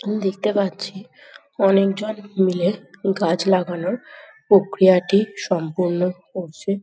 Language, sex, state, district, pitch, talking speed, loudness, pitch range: Bengali, female, West Bengal, Jhargram, 195 Hz, 90 wpm, -20 LUFS, 180-200 Hz